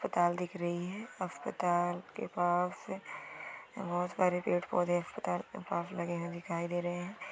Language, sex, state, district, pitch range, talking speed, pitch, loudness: Hindi, female, Bihar, East Champaran, 175-185 Hz, 155 wpm, 175 Hz, -35 LUFS